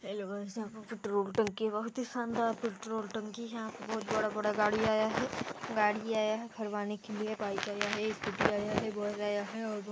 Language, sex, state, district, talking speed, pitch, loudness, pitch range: Hindi, female, Chhattisgarh, Balrampur, 230 wpm, 215 Hz, -34 LUFS, 210-225 Hz